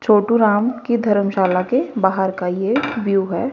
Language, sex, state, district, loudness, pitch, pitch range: Hindi, female, Haryana, Rohtak, -18 LUFS, 205 Hz, 190-235 Hz